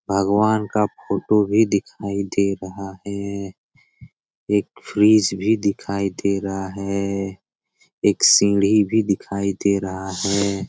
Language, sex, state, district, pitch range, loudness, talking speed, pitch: Hindi, male, Bihar, Jamui, 100-105 Hz, -20 LUFS, 125 wpm, 100 Hz